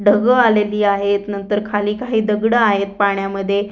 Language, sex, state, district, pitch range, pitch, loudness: Marathi, female, Maharashtra, Aurangabad, 200-215 Hz, 205 Hz, -17 LUFS